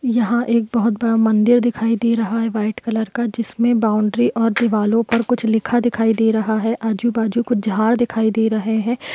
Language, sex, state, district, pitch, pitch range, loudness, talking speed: Hindi, male, Jharkhand, Jamtara, 225 Hz, 220-235 Hz, -18 LUFS, 205 wpm